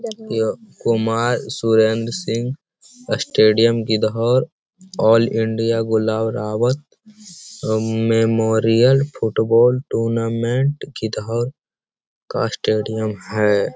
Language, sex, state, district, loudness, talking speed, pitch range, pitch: Hindi, male, Bihar, Jamui, -19 LUFS, 80 wpm, 110-125 Hz, 115 Hz